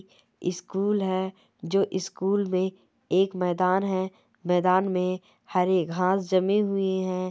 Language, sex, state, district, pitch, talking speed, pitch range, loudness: Hindi, female, Bihar, Jamui, 185 Hz, 125 wpm, 185-195 Hz, -26 LUFS